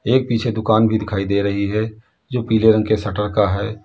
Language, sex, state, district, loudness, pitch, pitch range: Hindi, male, Uttar Pradesh, Lalitpur, -18 LUFS, 110 Hz, 100-110 Hz